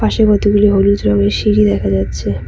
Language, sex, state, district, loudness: Bengali, female, West Bengal, Cooch Behar, -13 LUFS